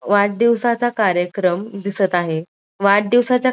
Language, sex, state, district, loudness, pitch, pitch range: Marathi, female, Maharashtra, Dhule, -18 LUFS, 200 Hz, 180-235 Hz